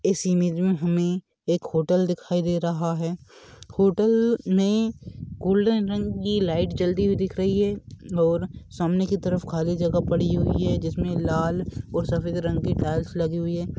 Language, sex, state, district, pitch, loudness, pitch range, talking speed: Hindi, male, Rajasthan, Churu, 175 Hz, -24 LUFS, 170-195 Hz, 180 wpm